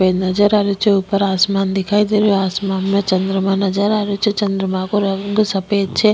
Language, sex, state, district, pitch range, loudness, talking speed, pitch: Rajasthani, female, Rajasthan, Nagaur, 195-205 Hz, -16 LUFS, 205 wpm, 195 Hz